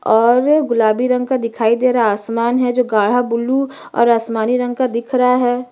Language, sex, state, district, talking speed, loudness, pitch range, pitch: Hindi, female, Chhattisgarh, Bastar, 210 wpm, -16 LUFS, 230-250 Hz, 245 Hz